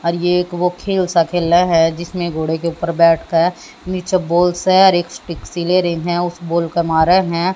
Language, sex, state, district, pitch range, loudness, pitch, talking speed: Hindi, female, Haryana, Jhajjar, 170-180 Hz, -16 LUFS, 175 Hz, 215 wpm